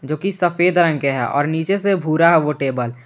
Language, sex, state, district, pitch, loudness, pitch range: Hindi, male, Jharkhand, Garhwa, 160 Hz, -17 LUFS, 140-175 Hz